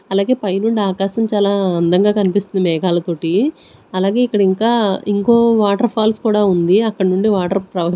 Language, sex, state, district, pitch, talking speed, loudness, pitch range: Telugu, female, Andhra Pradesh, Sri Satya Sai, 200 Hz, 150 wpm, -15 LUFS, 190-215 Hz